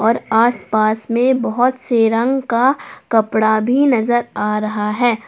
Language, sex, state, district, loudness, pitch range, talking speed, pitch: Hindi, female, Jharkhand, Palamu, -16 LUFS, 220-250 Hz, 160 wpm, 230 Hz